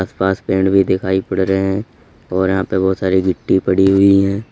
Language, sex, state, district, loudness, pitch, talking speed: Hindi, male, Uttar Pradesh, Lalitpur, -15 LUFS, 95 Hz, 225 wpm